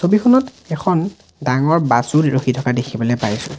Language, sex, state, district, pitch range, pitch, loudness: Assamese, male, Assam, Sonitpur, 125-175 Hz, 150 Hz, -17 LUFS